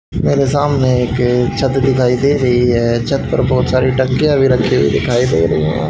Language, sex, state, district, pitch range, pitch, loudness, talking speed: Hindi, male, Haryana, Charkhi Dadri, 120-135 Hz, 130 Hz, -14 LUFS, 205 wpm